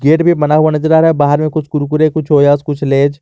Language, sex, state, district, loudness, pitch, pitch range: Hindi, male, Jharkhand, Garhwa, -12 LUFS, 150 Hz, 145-155 Hz